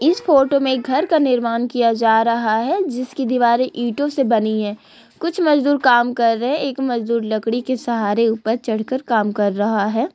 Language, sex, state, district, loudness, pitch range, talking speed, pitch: Hindi, female, Uttar Pradesh, Lalitpur, -18 LUFS, 225-270 Hz, 195 wpm, 240 Hz